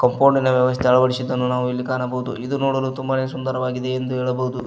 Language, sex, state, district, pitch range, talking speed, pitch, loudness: Kannada, male, Karnataka, Koppal, 125-130 Hz, 190 wpm, 130 Hz, -20 LUFS